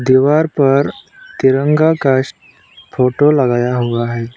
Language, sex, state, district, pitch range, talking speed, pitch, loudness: Hindi, male, West Bengal, Alipurduar, 125-150 Hz, 110 wpm, 135 Hz, -14 LUFS